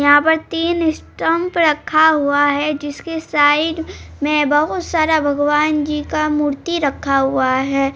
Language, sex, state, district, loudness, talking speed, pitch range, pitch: Hindi, male, Bihar, Araria, -16 LUFS, 145 wpm, 290-320 Hz, 300 Hz